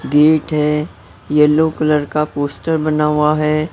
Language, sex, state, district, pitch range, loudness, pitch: Hindi, female, Maharashtra, Mumbai Suburban, 150-155 Hz, -15 LUFS, 150 Hz